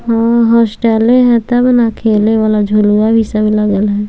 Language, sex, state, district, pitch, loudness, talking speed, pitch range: Maithili, female, Bihar, Samastipur, 220 Hz, -11 LUFS, 175 wpm, 210-235 Hz